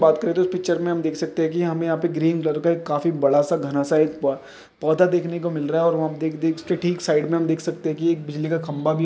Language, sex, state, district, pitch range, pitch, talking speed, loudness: Hindi, male, Maharashtra, Dhule, 155-170 Hz, 160 Hz, 285 wpm, -22 LUFS